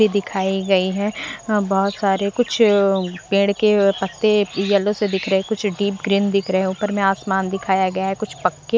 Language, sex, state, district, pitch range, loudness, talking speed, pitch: Hindi, female, Haryana, Rohtak, 190-210 Hz, -19 LUFS, 190 wpm, 200 Hz